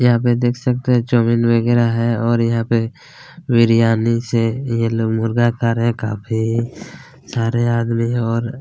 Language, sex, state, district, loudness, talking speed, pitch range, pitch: Hindi, male, Chhattisgarh, Kabirdham, -17 LUFS, 165 wpm, 115-120 Hz, 115 Hz